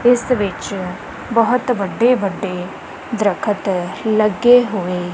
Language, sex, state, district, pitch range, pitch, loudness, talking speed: Punjabi, female, Punjab, Kapurthala, 185-240 Hz, 205 Hz, -17 LUFS, 95 wpm